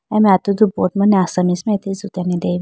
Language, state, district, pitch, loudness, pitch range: Idu Mishmi, Arunachal Pradesh, Lower Dibang Valley, 195 Hz, -16 LUFS, 180-205 Hz